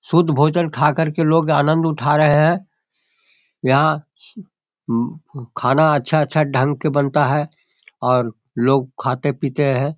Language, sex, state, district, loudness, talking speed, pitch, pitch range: Hindi, male, Bihar, Jahanabad, -18 LUFS, 125 wpm, 150 Hz, 135-155 Hz